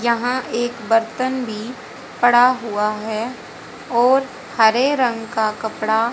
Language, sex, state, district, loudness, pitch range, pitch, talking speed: Hindi, female, Haryana, Jhajjar, -19 LUFS, 220-250 Hz, 235 Hz, 120 wpm